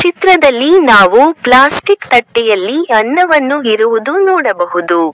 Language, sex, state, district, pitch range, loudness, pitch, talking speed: Kannada, female, Karnataka, Koppal, 220-350 Hz, -9 LUFS, 270 Hz, 80 wpm